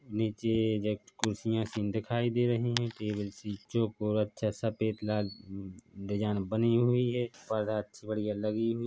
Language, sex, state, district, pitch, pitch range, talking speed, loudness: Hindi, male, Chhattisgarh, Bilaspur, 110 Hz, 105-115 Hz, 160 wpm, -32 LUFS